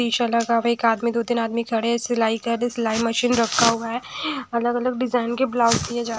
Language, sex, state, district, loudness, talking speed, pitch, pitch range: Hindi, female, Odisha, Sambalpur, -21 LUFS, 260 wpm, 235 Hz, 230-240 Hz